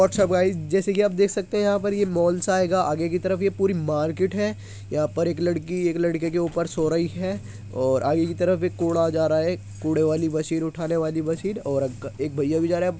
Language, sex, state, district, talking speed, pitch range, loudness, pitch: Hindi, male, Uttar Pradesh, Muzaffarnagar, 260 wpm, 155-185 Hz, -23 LUFS, 170 Hz